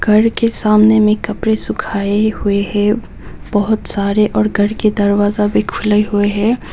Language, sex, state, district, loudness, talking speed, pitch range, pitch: Hindi, female, Nagaland, Kohima, -14 LUFS, 160 wpm, 205-215 Hz, 210 Hz